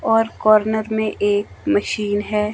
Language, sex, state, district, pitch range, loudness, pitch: Hindi, male, Himachal Pradesh, Shimla, 205-215 Hz, -19 LUFS, 210 Hz